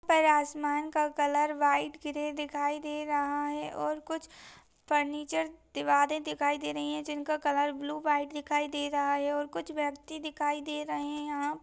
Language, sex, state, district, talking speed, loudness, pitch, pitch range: Hindi, female, Maharashtra, Solapur, 175 wpm, -31 LUFS, 295 Hz, 290-300 Hz